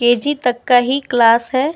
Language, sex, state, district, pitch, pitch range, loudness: Hindi, female, Uttar Pradesh, Budaun, 245 Hz, 240-275 Hz, -15 LUFS